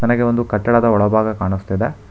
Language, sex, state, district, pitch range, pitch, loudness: Kannada, male, Karnataka, Bangalore, 105-120 Hz, 110 Hz, -17 LUFS